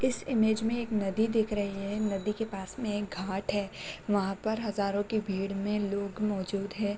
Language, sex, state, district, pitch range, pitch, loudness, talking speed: Hindi, female, Bihar, Sitamarhi, 200-220 Hz, 205 Hz, -31 LUFS, 205 wpm